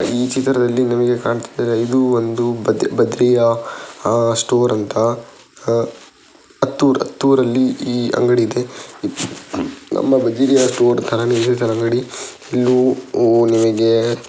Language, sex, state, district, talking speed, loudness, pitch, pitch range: Kannada, male, Karnataka, Dakshina Kannada, 110 wpm, -17 LUFS, 120 Hz, 115-125 Hz